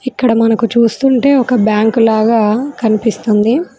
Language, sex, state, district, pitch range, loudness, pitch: Telugu, female, Telangana, Mahabubabad, 220-255 Hz, -12 LUFS, 230 Hz